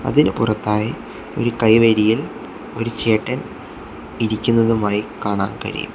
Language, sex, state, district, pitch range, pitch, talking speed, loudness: Malayalam, male, Kerala, Kollam, 105-115 Hz, 110 Hz, 90 wpm, -19 LUFS